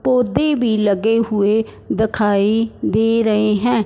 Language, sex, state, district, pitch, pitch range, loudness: Hindi, male, Punjab, Fazilka, 220 Hz, 210-230 Hz, -17 LUFS